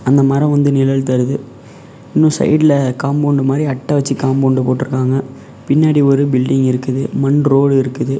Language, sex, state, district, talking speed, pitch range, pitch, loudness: Tamil, male, Tamil Nadu, Namakkal, 155 wpm, 130-145 Hz, 135 Hz, -14 LUFS